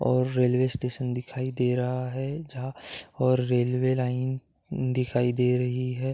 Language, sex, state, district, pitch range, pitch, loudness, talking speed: Hindi, male, Uttar Pradesh, Gorakhpur, 125-130 Hz, 125 Hz, -27 LUFS, 145 wpm